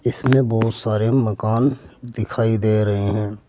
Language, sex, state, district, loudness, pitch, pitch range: Hindi, male, Uttar Pradesh, Saharanpur, -19 LUFS, 115 Hz, 105-125 Hz